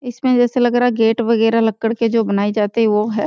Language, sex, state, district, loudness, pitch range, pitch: Hindi, female, Bihar, Sitamarhi, -16 LUFS, 220-240 Hz, 230 Hz